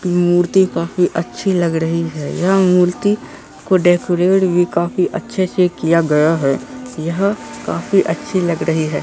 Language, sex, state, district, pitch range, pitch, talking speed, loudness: Hindi, female, Bihar, Katihar, 165-190 Hz, 175 Hz, 155 wpm, -16 LUFS